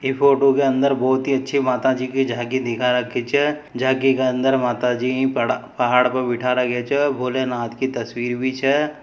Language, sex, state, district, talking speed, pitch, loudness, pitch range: Marwari, male, Rajasthan, Nagaur, 195 wpm, 130 Hz, -20 LUFS, 125-135 Hz